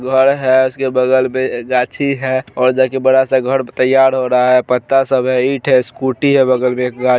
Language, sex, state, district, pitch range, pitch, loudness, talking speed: Hindi, male, Bihar, Araria, 125-135 Hz, 130 Hz, -14 LUFS, 215 wpm